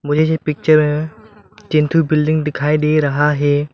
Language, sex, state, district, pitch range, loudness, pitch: Hindi, male, Arunachal Pradesh, Lower Dibang Valley, 150-155 Hz, -16 LUFS, 150 Hz